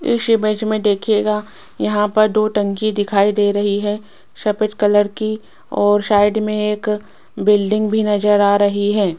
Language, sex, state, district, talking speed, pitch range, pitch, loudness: Hindi, female, Rajasthan, Jaipur, 165 wpm, 205-215 Hz, 210 Hz, -17 LUFS